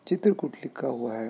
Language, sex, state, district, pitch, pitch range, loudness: Hindi, male, Uttar Pradesh, Hamirpur, 140 Hz, 120-180 Hz, -29 LUFS